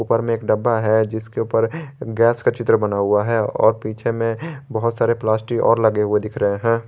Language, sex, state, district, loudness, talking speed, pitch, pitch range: Hindi, male, Jharkhand, Garhwa, -19 LUFS, 220 wpm, 115 Hz, 110-115 Hz